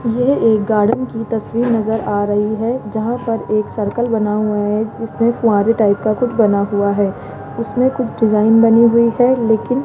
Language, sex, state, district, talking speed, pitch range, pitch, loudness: Hindi, female, Rajasthan, Jaipur, 195 wpm, 210-235 Hz, 225 Hz, -15 LUFS